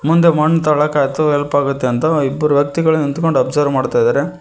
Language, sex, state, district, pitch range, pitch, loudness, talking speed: Kannada, male, Karnataka, Koppal, 145-160 Hz, 150 Hz, -15 LUFS, 165 wpm